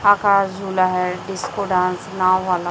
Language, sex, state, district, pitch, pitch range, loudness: Hindi, female, Chhattisgarh, Raipur, 185 Hz, 180-195 Hz, -19 LUFS